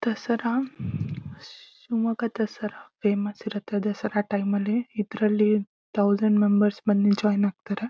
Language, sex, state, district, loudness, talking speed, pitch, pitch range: Kannada, female, Karnataka, Shimoga, -25 LUFS, 105 wpm, 210 Hz, 205-230 Hz